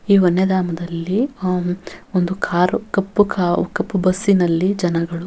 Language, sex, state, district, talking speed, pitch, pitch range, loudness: Kannada, female, Karnataka, Bellary, 125 wpm, 185 Hz, 175-195 Hz, -19 LUFS